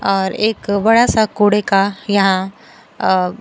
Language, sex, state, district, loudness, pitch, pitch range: Hindi, female, Bihar, Kaimur, -15 LUFS, 200 Hz, 195-215 Hz